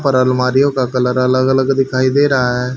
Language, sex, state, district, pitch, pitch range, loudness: Hindi, male, Haryana, Charkhi Dadri, 130 Hz, 125-135 Hz, -14 LUFS